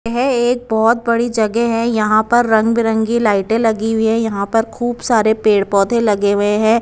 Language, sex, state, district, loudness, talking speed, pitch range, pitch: Hindi, female, Punjab, Kapurthala, -15 LUFS, 200 wpm, 215-235 Hz, 225 Hz